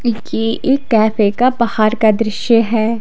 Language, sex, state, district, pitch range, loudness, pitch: Hindi, female, Himachal Pradesh, Shimla, 220-235 Hz, -14 LUFS, 225 Hz